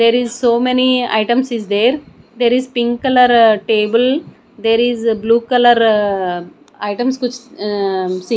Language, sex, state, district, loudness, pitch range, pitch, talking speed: English, female, Odisha, Nuapada, -14 LUFS, 215-245 Hz, 235 Hz, 135 wpm